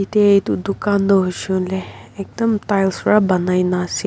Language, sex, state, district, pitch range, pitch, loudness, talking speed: Nagamese, female, Nagaland, Kohima, 185-205 Hz, 195 Hz, -17 LUFS, 160 wpm